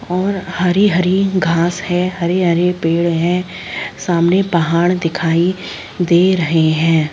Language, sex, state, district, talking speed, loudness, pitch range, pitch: Hindi, female, Chhattisgarh, Balrampur, 110 wpm, -15 LUFS, 170-185 Hz, 175 Hz